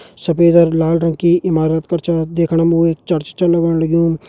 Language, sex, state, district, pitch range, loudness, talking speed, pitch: Hindi, male, Uttarakhand, Tehri Garhwal, 165-170 Hz, -15 LUFS, 225 wpm, 165 Hz